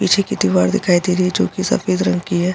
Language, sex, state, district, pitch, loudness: Hindi, female, Bihar, Saharsa, 175 Hz, -17 LUFS